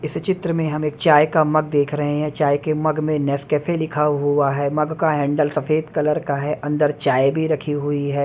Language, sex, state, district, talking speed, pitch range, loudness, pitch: Hindi, male, Haryana, Rohtak, 230 wpm, 145-155 Hz, -20 LUFS, 150 Hz